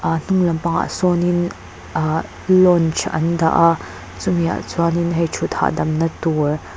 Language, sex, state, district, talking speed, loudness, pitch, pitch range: Mizo, female, Mizoram, Aizawl, 150 wpm, -18 LUFS, 165 Hz, 145-170 Hz